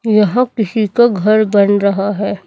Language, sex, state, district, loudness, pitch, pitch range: Hindi, female, Chhattisgarh, Raipur, -13 LUFS, 210 Hz, 200-220 Hz